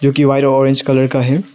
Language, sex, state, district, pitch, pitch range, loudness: Hindi, male, Arunachal Pradesh, Lower Dibang Valley, 135 Hz, 135-140 Hz, -13 LUFS